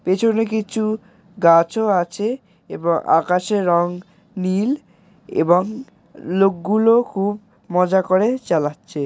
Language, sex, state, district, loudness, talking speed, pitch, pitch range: Bengali, male, West Bengal, Jalpaiguri, -19 LUFS, 95 wpm, 190 Hz, 180-215 Hz